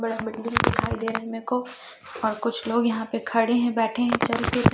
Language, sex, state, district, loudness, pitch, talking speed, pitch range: Hindi, male, Chhattisgarh, Raipur, -25 LUFS, 230 Hz, 230 wpm, 225-235 Hz